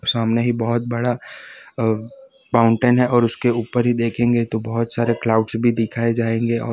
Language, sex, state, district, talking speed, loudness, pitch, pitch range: Hindi, male, Gujarat, Valsad, 180 wpm, -19 LUFS, 115 Hz, 115-120 Hz